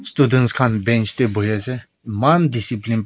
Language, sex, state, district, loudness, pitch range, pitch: Nagamese, male, Nagaland, Kohima, -17 LUFS, 110-130 Hz, 115 Hz